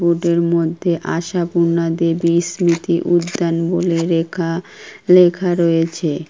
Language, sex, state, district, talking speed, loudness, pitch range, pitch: Bengali, female, West Bengal, Kolkata, 105 wpm, -17 LUFS, 165-175 Hz, 170 Hz